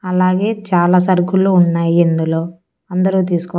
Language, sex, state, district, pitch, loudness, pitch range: Telugu, female, Andhra Pradesh, Annamaya, 180 Hz, -15 LUFS, 170-185 Hz